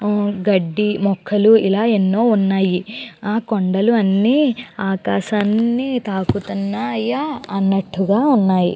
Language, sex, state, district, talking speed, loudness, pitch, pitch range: Telugu, female, Andhra Pradesh, Chittoor, 80 wpm, -17 LUFS, 210 Hz, 195-225 Hz